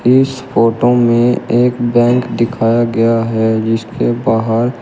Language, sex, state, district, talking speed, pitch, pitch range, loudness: Hindi, male, Uttar Pradesh, Shamli, 125 wpm, 115 Hz, 115-120 Hz, -13 LUFS